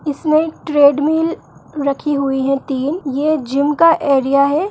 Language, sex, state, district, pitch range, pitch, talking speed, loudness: Kumaoni, female, Uttarakhand, Uttarkashi, 275-310 Hz, 290 Hz, 140 wpm, -15 LUFS